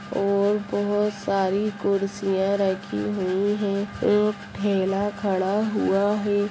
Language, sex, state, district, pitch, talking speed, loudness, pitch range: Hindi, female, Bihar, Samastipur, 200 Hz, 110 wpm, -24 LUFS, 195-205 Hz